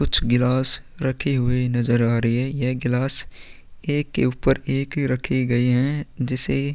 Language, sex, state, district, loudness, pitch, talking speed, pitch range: Hindi, male, Chhattisgarh, Korba, -20 LUFS, 125 Hz, 170 wpm, 120-135 Hz